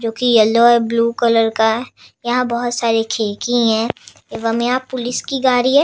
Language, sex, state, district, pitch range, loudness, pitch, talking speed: Hindi, female, Bihar, Vaishali, 225-245 Hz, -16 LUFS, 235 Hz, 185 wpm